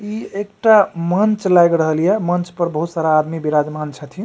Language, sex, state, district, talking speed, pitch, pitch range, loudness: Maithili, male, Bihar, Supaul, 185 wpm, 170 Hz, 155-205 Hz, -17 LUFS